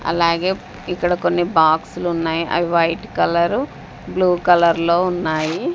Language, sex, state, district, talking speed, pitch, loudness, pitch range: Telugu, female, Andhra Pradesh, Sri Satya Sai, 105 wpm, 170 Hz, -18 LUFS, 165-175 Hz